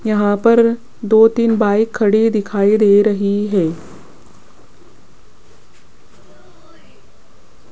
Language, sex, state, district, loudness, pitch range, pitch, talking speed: Hindi, female, Rajasthan, Jaipur, -14 LUFS, 205-225 Hz, 210 Hz, 80 wpm